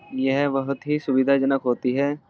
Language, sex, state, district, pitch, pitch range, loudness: Hindi, male, Uttar Pradesh, Jyotiba Phule Nagar, 135 Hz, 130-140 Hz, -22 LUFS